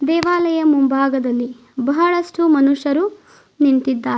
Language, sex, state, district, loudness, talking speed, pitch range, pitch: Kannada, female, Karnataka, Bidar, -17 LUFS, 70 wpm, 265-335 Hz, 285 Hz